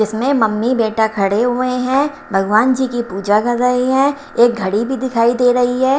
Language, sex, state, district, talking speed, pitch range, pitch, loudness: Hindi, female, Himachal Pradesh, Shimla, 200 wpm, 220-260 Hz, 245 Hz, -15 LUFS